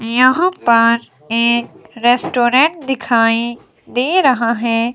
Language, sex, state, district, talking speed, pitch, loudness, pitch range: Hindi, female, Himachal Pradesh, Shimla, 95 wpm, 235 Hz, -14 LUFS, 230-255 Hz